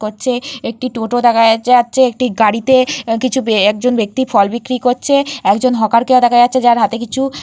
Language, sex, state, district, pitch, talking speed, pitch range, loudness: Bengali, female, West Bengal, Purulia, 245 Hz, 185 wpm, 225-255 Hz, -13 LUFS